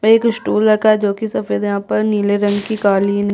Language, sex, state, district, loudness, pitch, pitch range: Hindi, female, Chhattisgarh, Jashpur, -16 LUFS, 205 Hz, 200-215 Hz